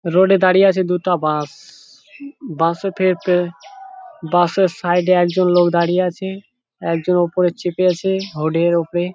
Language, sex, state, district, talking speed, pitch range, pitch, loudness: Bengali, male, West Bengal, Jhargram, 170 wpm, 170-190 Hz, 180 Hz, -17 LUFS